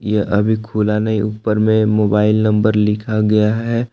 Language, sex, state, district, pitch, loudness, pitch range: Hindi, male, Jharkhand, Palamu, 105 Hz, -16 LUFS, 105-110 Hz